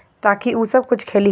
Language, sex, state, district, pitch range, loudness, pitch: Bhojpuri, female, Jharkhand, Palamu, 205-245 Hz, -18 LUFS, 225 Hz